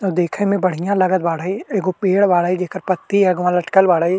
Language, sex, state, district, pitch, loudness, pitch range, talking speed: Bhojpuri, male, Uttar Pradesh, Deoria, 185 Hz, -17 LUFS, 180-195 Hz, 200 wpm